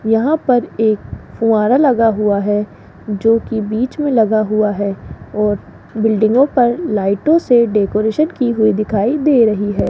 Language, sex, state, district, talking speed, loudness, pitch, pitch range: Hindi, female, Rajasthan, Jaipur, 160 wpm, -15 LUFS, 220 Hz, 210-245 Hz